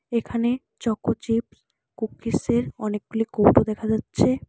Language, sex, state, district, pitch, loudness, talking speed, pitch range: Bengali, female, West Bengal, Alipurduar, 225 Hz, -24 LUFS, 105 wpm, 210-235 Hz